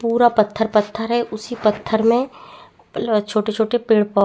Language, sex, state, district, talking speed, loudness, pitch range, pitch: Hindi, female, Chhattisgarh, Bastar, 155 wpm, -19 LUFS, 215-235 Hz, 220 Hz